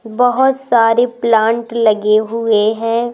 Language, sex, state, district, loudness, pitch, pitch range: Hindi, female, Madhya Pradesh, Umaria, -14 LUFS, 230 Hz, 220-240 Hz